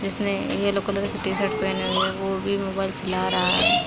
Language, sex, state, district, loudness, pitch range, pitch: Hindi, female, Jharkhand, Sahebganj, -24 LUFS, 195-200 Hz, 195 Hz